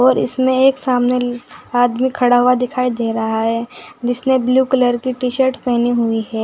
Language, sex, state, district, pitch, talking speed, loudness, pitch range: Hindi, female, Uttar Pradesh, Saharanpur, 250 Hz, 175 wpm, -16 LUFS, 240-255 Hz